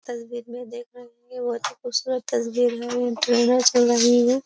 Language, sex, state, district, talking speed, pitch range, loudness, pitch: Hindi, female, Uttar Pradesh, Jyotiba Phule Nagar, 160 wpm, 240-245 Hz, -21 LUFS, 245 Hz